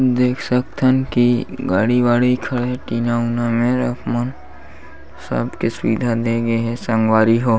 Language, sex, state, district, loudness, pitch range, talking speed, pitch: Chhattisgarhi, male, Chhattisgarh, Bastar, -18 LUFS, 115-125 Hz, 135 wpm, 120 Hz